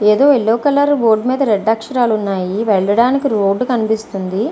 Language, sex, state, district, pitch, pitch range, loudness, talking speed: Telugu, female, Andhra Pradesh, Visakhapatnam, 225 Hz, 205-255 Hz, -15 LUFS, 145 wpm